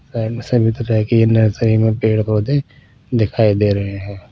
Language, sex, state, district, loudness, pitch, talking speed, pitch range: Hindi, male, Punjab, Pathankot, -16 LUFS, 110 Hz, 165 wpm, 105-115 Hz